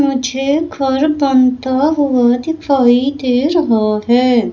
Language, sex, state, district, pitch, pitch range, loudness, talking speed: Hindi, female, Madhya Pradesh, Umaria, 265 Hz, 250-285 Hz, -14 LUFS, 105 wpm